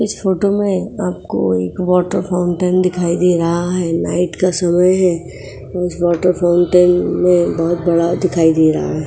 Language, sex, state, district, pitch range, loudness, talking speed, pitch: Hindi, female, Uttar Pradesh, Etah, 160-180 Hz, -15 LUFS, 170 wpm, 175 Hz